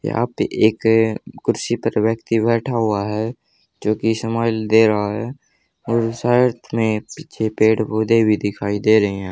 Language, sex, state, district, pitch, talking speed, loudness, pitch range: Hindi, male, Haryana, Charkhi Dadri, 110 Hz, 165 wpm, -19 LUFS, 110-115 Hz